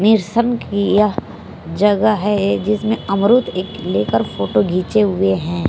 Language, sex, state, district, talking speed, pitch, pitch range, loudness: Hindi, female, Punjab, Fazilka, 135 wpm, 200 Hz, 170-215 Hz, -16 LUFS